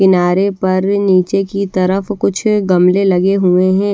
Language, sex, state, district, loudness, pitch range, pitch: Hindi, female, Haryana, Charkhi Dadri, -13 LUFS, 185-200 Hz, 190 Hz